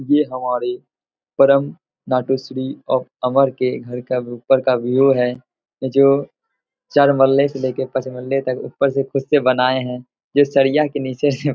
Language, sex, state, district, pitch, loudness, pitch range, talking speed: Hindi, male, Bihar, Bhagalpur, 130 Hz, -18 LUFS, 125-140 Hz, 170 wpm